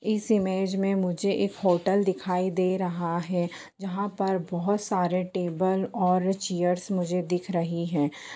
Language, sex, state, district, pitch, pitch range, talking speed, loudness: Hindi, female, Bihar, Madhepura, 185 Hz, 180-195 Hz, 150 wpm, -27 LUFS